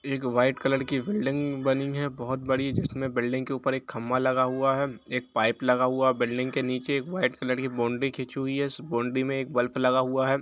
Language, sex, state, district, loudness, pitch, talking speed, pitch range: Hindi, male, Jharkhand, Jamtara, -27 LUFS, 130 Hz, 240 wpm, 125-135 Hz